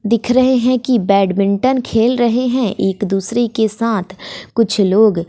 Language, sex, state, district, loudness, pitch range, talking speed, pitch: Hindi, female, Bihar, West Champaran, -15 LUFS, 200-245 Hz, 160 wpm, 225 Hz